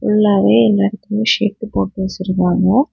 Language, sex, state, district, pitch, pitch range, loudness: Tamil, female, Tamil Nadu, Kanyakumari, 200 Hz, 190-215 Hz, -15 LUFS